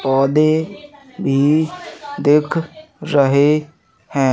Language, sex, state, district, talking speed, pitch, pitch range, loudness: Hindi, male, Madhya Pradesh, Katni, 70 wpm, 155 Hz, 140-165 Hz, -16 LUFS